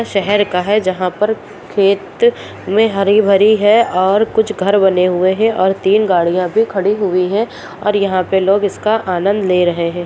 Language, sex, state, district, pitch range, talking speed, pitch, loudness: Hindi, female, Bihar, Purnia, 185-210 Hz, 185 wpm, 200 Hz, -14 LUFS